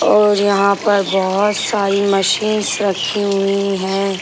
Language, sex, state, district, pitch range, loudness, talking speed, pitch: Hindi, female, Bihar, Sitamarhi, 195-205 Hz, -16 LUFS, 130 wpm, 200 Hz